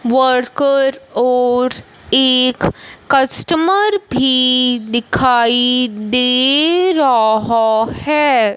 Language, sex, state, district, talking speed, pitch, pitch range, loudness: Hindi, female, Punjab, Fazilka, 65 wpm, 255 Hz, 245-275 Hz, -13 LUFS